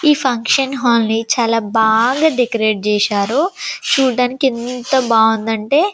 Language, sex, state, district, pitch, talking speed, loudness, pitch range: Telugu, female, Telangana, Karimnagar, 240 Hz, 110 wpm, -15 LUFS, 225-270 Hz